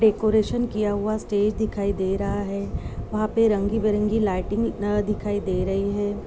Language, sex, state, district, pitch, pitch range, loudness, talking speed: Hindi, female, Uttar Pradesh, Deoria, 205 Hz, 200-215 Hz, -24 LUFS, 170 wpm